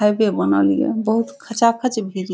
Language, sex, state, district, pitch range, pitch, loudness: Maithili, female, Bihar, Saharsa, 190-230 Hz, 220 Hz, -19 LUFS